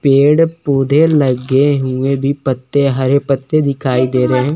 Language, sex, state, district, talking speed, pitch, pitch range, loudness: Hindi, male, Chandigarh, Chandigarh, 160 wpm, 140 Hz, 130-145 Hz, -14 LUFS